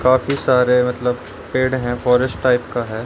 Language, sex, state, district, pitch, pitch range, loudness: Hindi, male, Haryana, Rohtak, 125 Hz, 120-130 Hz, -18 LUFS